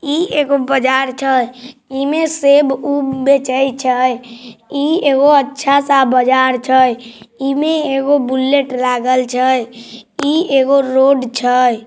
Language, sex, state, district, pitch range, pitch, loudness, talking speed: Maithili, male, Bihar, Samastipur, 255-280 Hz, 265 Hz, -14 LUFS, 120 wpm